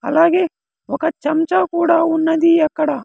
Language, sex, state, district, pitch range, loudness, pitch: Telugu, male, Andhra Pradesh, Sri Satya Sai, 310-340 Hz, -16 LUFS, 325 Hz